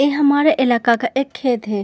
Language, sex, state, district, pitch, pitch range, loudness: Hindi, female, Uttar Pradesh, Muzaffarnagar, 255 Hz, 240-285 Hz, -17 LUFS